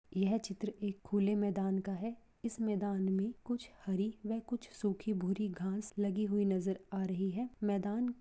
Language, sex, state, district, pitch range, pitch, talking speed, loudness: Hindi, female, Jharkhand, Sahebganj, 195-220 Hz, 205 Hz, 175 wpm, -37 LUFS